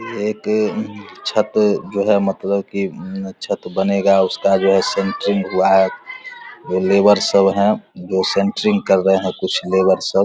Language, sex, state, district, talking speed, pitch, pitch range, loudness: Hindi, male, Bihar, Vaishali, 165 wpm, 100 Hz, 95-105 Hz, -17 LUFS